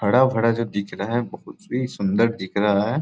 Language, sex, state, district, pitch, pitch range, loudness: Hindi, male, Bihar, Samastipur, 115 Hz, 100-120 Hz, -22 LUFS